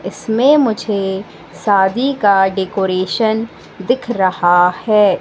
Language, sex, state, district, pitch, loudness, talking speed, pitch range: Hindi, female, Madhya Pradesh, Katni, 200 Hz, -15 LUFS, 90 wpm, 185-225 Hz